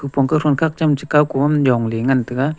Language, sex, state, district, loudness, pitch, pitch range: Wancho, male, Arunachal Pradesh, Longding, -17 LUFS, 140 Hz, 135-150 Hz